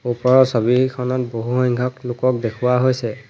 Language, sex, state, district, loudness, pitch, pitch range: Assamese, male, Assam, Hailakandi, -18 LUFS, 125 Hz, 120-130 Hz